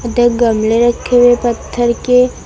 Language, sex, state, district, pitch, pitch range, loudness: Hindi, female, Uttar Pradesh, Lucknow, 240 Hz, 235-245 Hz, -12 LUFS